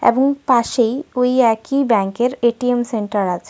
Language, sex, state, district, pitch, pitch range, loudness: Bengali, female, Jharkhand, Sahebganj, 245 Hz, 225-255 Hz, -17 LUFS